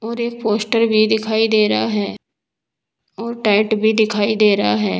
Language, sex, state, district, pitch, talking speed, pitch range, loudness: Hindi, female, Uttar Pradesh, Saharanpur, 215 Hz, 180 wpm, 200-220 Hz, -17 LUFS